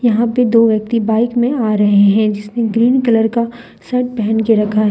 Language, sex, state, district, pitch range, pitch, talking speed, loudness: Hindi, female, Jharkhand, Deoghar, 215-235 Hz, 225 Hz, 220 wpm, -14 LUFS